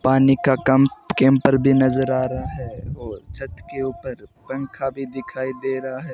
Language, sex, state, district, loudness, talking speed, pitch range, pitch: Hindi, male, Rajasthan, Bikaner, -20 LUFS, 185 wpm, 130-135 Hz, 135 Hz